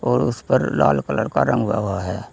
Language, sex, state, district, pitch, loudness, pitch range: Hindi, male, Uttar Pradesh, Saharanpur, 100 Hz, -20 LUFS, 80-120 Hz